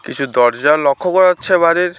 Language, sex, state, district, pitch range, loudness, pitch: Bengali, male, West Bengal, Alipurduar, 140-180 Hz, -13 LUFS, 170 Hz